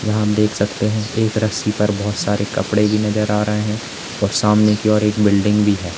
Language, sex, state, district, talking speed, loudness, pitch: Hindi, male, Uttar Pradesh, Lalitpur, 230 wpm, -17 LUFS, 105 Hz